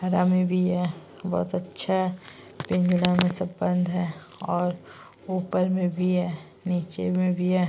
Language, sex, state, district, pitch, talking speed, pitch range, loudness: Hindi, female, Uttarakhand, Tehri Garhwal, 180 Hz, 165 wpm, 180-185 Hz, -26 LUFS